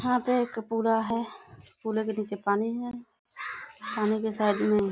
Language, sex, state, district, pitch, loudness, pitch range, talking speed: Hindi, female, Bihar, Kishanganj, 225 Hz, -29 LUFS, 215-235 Hz, 185 wpm